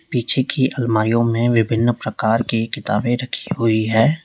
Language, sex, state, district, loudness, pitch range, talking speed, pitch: Hindi, male, Uttar Pradesh, Lalitpur, -19 LUFS, 110-125 Hz, 155 wpm, 115 Hz